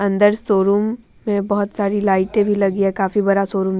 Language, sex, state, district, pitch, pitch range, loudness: Hindi, female, Bihar, Vaishali, 200 Hz, 195-205 Hz, -18 LUFS